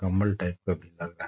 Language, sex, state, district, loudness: Hindi, male, Chhattisgarh, Balrampur, -30 LUFS